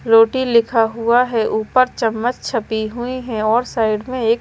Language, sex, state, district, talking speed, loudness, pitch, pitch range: Hindi, female, Himachal Pradesh, Shimla, 175 wpm, -17 LUFS, 230 Hz, 220-245 Hz